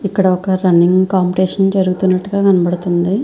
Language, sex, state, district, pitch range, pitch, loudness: Telugu, female, Andhra Pradesh, Visakhapatnam, 180-195 Hz, 185 Hz, -14 LUFS